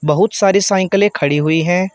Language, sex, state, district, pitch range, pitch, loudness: Hindi, male, Uttar Pradesh, Shamli, 160-200 Hz, 190 Hz, -14 LUFS